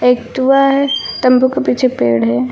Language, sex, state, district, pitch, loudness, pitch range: Hindi, female, Uttar Pradesh, Lucknow, 255 Hz, -13 LUFS, 210-270 Hz